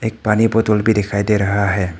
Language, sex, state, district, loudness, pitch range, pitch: Hindi, male, Arunachal Pradesh, Papum Pare, -16 LUFS, 100-110 Hz, 105 Hz